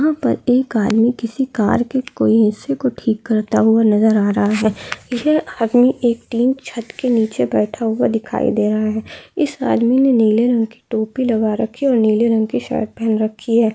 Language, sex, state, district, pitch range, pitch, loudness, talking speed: Hindi, female, Bihar, Gaya, 220-250 Hz, 230 Hz, -17 LUFS, 205 wpm